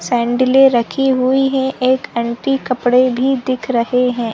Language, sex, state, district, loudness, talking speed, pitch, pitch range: Hindi, female, Chhattisgarh, Sarguja, -15 LUFS, 150 wpm, 255 Hz, 245-265 Hz